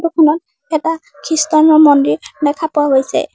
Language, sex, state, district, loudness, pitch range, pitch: Assamese, female, Assam, Sonitpur, -13 LUFS, 290-320 Hz, 310 Hz